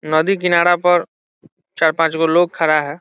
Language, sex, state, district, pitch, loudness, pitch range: Hindi, male, Bihar, Saran, 165 Hz, -15 LUFS, 155-175 Hz